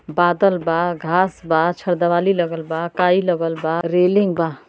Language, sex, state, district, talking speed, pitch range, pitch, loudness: Bhojpuri, female, Uttar Pradesh, Ghazipur, 155 wpm, 165-180 Hz, 175 Hz, -18 LUFS